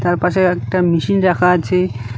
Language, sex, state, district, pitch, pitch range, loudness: Bengali, male, West Bengal, Cooch Behar, 180 Hz, 175-185 Hz, -15 LUFS